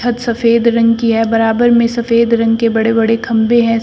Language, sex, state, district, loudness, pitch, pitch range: Hindi, female, Uttar Pradesh, Shamli, -12 LUFS, 230 Hz, 225-235 Hz